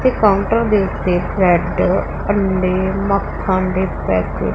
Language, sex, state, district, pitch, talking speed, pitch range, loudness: Punjabi, female, Punjab, Pathankot, 190 Hz, 145 wpm, 180-200 Hz, -17 LUFS